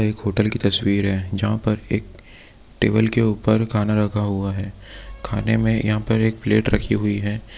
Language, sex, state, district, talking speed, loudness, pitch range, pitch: Hindi, male, Uttar Pradesh, Muzaffarnagar, 190 wpm, -20 LUFS, 100-110 Hz, 105 Hz